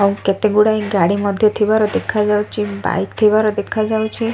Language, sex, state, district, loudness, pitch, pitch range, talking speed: Odia, female, Odisha, Sambalpur, -16 LUFS, 210 Hz, 205-215 Hz, 140 wpm